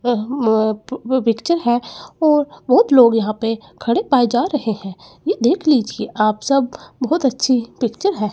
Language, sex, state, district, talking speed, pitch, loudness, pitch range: Hindi, male, Chandigarh, Chandigarh, 165 wpm, 240 Hz, -17 LUFS, 220-270 Hz